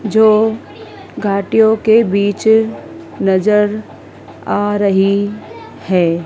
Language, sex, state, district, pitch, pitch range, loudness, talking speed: Hindi, female, Madhya Pradesh, Dhar, 210 Hz, 200-220 Hz, -14 LUFS, 75 wpm